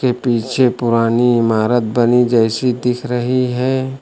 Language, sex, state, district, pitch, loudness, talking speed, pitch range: Hindi, male, Uttar Pradesh, Lucknow, 120 Hz, -15 LUFS, 120 wpm, 120-125 Hz